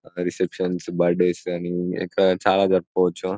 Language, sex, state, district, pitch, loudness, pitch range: Telugu, male, Telangana, Karimnagar, 90 Hz, -22 LUFS, 90-95 Hz